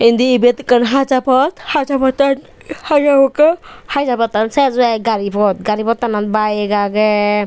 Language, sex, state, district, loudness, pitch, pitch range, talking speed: Chakma, female, Tripura, Dhalai, -14 LUFS, 245 Hz, 215-275 Hz, 160 wpm